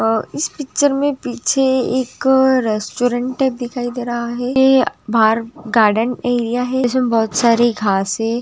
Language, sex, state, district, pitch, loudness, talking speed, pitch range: Hindi, female, Maharashtra, Nagpur, 245 Hz, -17 LUFS, 120 wpm, 225-260 Hz